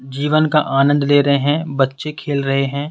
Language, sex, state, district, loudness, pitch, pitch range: Hindi, male, Rajasthan, Jaipur, -16 LUFS, 145 Hz, 135-150 Hz